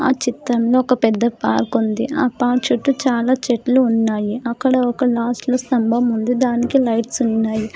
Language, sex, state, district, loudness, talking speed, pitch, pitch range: Telugu, female, Telangana, Hyderabad, -18 LUFS, 160 wpm, 245 Hz, 230-255 Hz